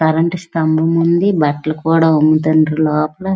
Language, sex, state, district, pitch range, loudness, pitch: Telugu, female, Andhra Pradesh, Srikakulam, 155-165 Hz, -14 LUFS, 160 Hz